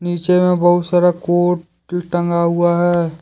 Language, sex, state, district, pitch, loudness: Hindi, male, Jharkhand, Deoghar, 175 Hz, -16 LUFS